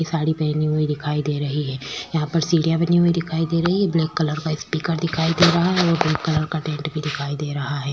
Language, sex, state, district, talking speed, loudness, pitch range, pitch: Hindi, female, Chhattisgarh, Sukma, 265 wpm, -21 LUFS, 150-165 Hz, 155 Hz